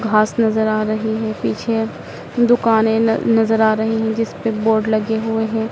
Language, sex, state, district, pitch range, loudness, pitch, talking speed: Hindi, female, Madhya Pradesh, Dhar, 220-225 Hz, -17 LUFS, 220 Hz, 180 wpm